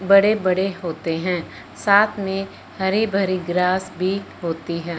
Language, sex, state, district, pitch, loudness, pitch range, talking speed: Hindi, female, Punjab, Fazilka, 185 Hz, -21 LUFS, 175-195 Hz, 145 wpm